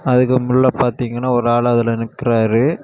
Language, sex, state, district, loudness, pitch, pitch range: Tamil, male, Tamil Nadu, Kanyakumari, -16 LUFS, 125 Hz, 120-130 Hz